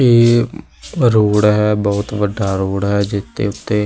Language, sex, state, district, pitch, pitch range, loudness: Punjabi, male, Punjab, Kapurthala, 105 Hz, 100-115 Hz, -15 LUFS